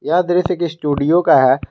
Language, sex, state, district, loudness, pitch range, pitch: Hindi, male, Jharkhand, Garhwa, -15 LUFS, 140-175 Hz, 165 Hz